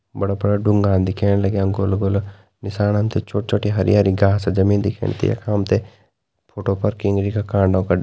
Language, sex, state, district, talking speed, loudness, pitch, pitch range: Garhwali, male, Uttarakhand, Tehri Garhwal, 150 wpm, -19 LUFS, 100 Hz, 95-105 Hz